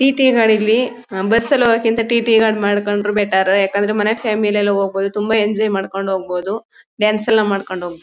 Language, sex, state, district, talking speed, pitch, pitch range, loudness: Kannada, female, Karnataka, Mysore, 170 wpm, 210 Hz, 195-225 Hz, -16 LUFS